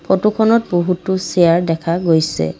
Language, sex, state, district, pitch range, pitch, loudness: Assamese, female, Assam, Kamrup Metropolitan, 165-190 Hz, 175 Hz, -15 LUFS